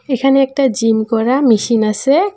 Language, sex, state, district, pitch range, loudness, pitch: Bengali, female, West Bengal, Cooch Behar, 225-270 Hz, -14 LUFS, 255 Hz